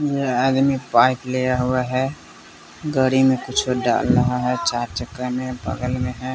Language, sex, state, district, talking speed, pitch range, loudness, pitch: Hindi, male, Bihar, West Champaran, 170 wpm, 125-130 Hz, -20 LUFS, 125 Hz